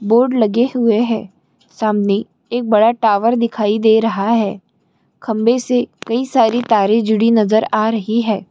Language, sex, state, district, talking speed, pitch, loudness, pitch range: Hindi, female, Chhattisgarh, Bilaspur, 155 wpm, 225 Hz, -15 LUFS, 215-235 Hz